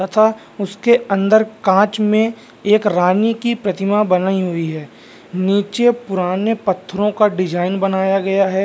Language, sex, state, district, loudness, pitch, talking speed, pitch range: Hindi, male, Bihar, Vaishali, -16 LUFS, 200 Hz, 140 wpm, 190-215 Hz